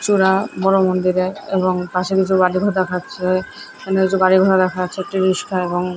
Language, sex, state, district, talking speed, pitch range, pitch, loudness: Bengali, female, West Bengal, Malda, 170 wpm, 185-190 Hz, 185 Hz, -17 LUFS